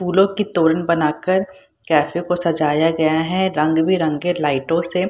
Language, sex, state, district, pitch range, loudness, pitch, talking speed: Hindi, female, Bihar, Purnia, 155-185 Hz, -18 LUFS, 170 Hz, 165 wpm